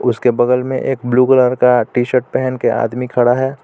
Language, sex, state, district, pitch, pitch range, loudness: Hindi, male, Jharkhand, Palamu, 125 Hz, 125-130 Hz, -14 LUFS